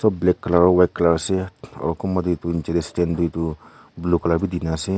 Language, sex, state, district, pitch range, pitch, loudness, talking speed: Nagamese, male, Nagaland, Kohima, 85-95 Hz, 85 Hz, -21 LUFS, 240 wpm